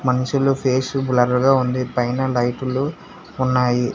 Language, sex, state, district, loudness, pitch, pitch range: Telugu, male, Telangana, Hyderabad, -19 LUFS, 130 Hz, 125-135 Hz